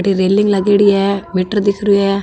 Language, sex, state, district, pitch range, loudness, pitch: Marwari, female, Rajasthan, Nagaur, 195-205 Hz, -14 LUFS, 200 Hz